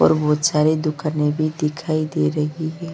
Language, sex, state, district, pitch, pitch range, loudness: Hindi, female, Chhattisgarh, Sukma, 155 Hz, 150-155 Hz, -20 LUFS